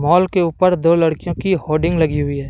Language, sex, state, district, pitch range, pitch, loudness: Hindi, male, Jharkhand, Deoghar, 155-180 Hz, 165 Hz, -16 LUFS